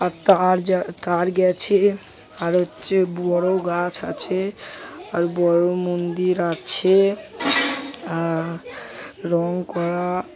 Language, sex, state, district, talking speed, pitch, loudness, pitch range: Bengali, male, West Bengal, Kolkata, 100 wpm, 180 Hz, -21 LUFS, 175-190 Hz